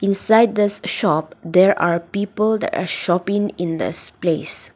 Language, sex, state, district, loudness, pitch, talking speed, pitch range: English, female, Nagaland, Dimapur, -19 LUFS, 200 Hz, 140 wpm, 175-210 Hz